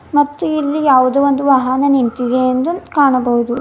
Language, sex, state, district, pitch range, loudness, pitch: Kannada, female, Karnataka, Bidar, 255-290 Hz, -14 LUFS, 270 Hz